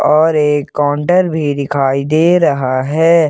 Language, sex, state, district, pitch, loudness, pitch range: Hindi, male, Jharkhand, Ranchi, 150 Hz, -13 LUFS, 140-160 Hz